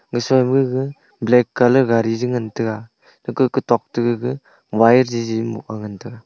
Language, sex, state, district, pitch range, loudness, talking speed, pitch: Wancho, male, Arunachal Pradesh, Longding, 115-125 Hz, -18 LUFS, 180 wpm, 120 Hz